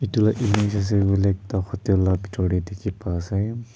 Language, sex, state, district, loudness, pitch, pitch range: Nagamese, male, Nagaland, Kohima, -23 LUFS, 100 Hz, 95-110 Hz